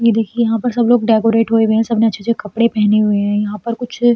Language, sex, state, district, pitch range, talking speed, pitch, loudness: Hindi, female, Uttar Pradesh, Etah, 215-235 Hz, 290 wpm, 225 Hz, -15 LUFS